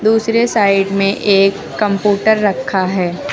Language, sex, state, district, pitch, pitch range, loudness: Hindi, female, Uttar Pradesh, Lucknow, 200 Hz, 195-215 Hz, -14 LUFS